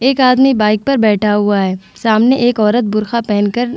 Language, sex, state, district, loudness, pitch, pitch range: Hindi, female, Bihar, Vaishali, -13 LUFS, 220 Hz, 210-245 Hz